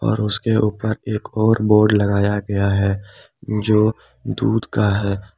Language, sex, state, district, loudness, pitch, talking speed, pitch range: Hindi, male, Jharkhand, Palamu, -19 LUFS, 105 Hz, 145 wpm, 100-110 Hz